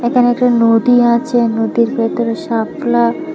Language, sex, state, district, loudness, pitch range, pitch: Bengali, female, Tripura, West Tripura, -13 LUFS, 225-245 Hz, 235 Hz